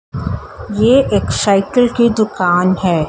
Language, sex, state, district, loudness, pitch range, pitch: Hindi, male, Haryana, Jhajjar, -14 LUFS, 180-235 Hz, 205 Hz